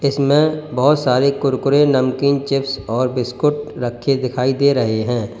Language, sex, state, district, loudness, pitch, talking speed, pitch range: Hindi, male, Uttar Pradesh, Lalitpur, -17 LUFS, 135 Hz, 145 wpm, 125-140 Hz